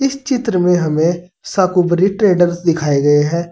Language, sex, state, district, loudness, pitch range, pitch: Hindi, male, Uttar Pradesh, Saharanpur, -14 LUFS, 165-190 Hz, 175 Hz